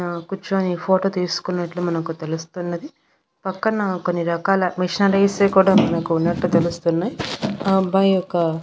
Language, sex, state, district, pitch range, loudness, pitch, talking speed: Telugu, female, Andhra Pradesh, Annamaya, 170-195 Hz, -20 LUFS, 180 Hz, 125 wpm